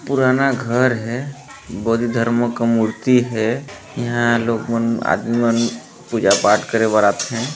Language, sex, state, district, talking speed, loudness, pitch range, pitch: Hindi, male, Chhattisgarh, Balrampur, 145 wpm, -18 LUFS, 115-125 Hz, 115 Hz